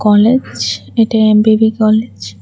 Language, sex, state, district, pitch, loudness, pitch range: Bengali, female, Tripura, West Tripura, 220 Hz, -12 LUFS, 210-220 Hz